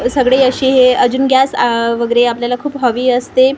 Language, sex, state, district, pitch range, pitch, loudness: Marathi, female, Maharashtra, Gondia, 245-265 Hz, 255 Hz, -12 LUFS